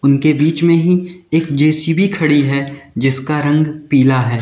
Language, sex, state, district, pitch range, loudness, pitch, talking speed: Hindi, male, Uttar Pradesh, Lalitpur, 140-165 Hz, -14 LUFS, 150 Hz, 165 wpm